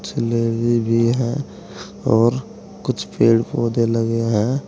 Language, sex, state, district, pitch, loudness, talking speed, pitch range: Hindi, male, Uttar Pradesh, Saharanpur, 115 Hz, -19 LUFS, 75 wpm, 115-120 Hz